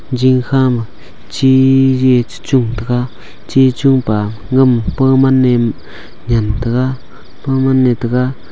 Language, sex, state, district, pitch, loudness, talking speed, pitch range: Wancho, male, Arunachal Pradesh, Longding, 130 Hz, -13 LUFS, 135 wpm, 120-130 Hz